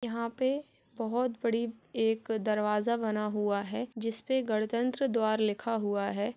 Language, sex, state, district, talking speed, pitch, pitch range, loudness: Hindi, male, Uttar Pradesh, Etah, 150 wpm, 225 Hz, 215-235 Hz, -31 LUFS